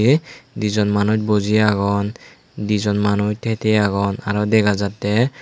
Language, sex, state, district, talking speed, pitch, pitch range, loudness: Chakma, male, Tripura, Unakoti, 145 wpm, 105 Hz, 105-110 Hz, -19 LUFS